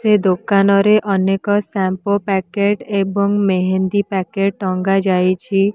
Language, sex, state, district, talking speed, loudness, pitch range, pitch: Odia, female, Odisha, Nuapada, 115 wpm, -16 LUFS, 190-205 Hz, 195 Hz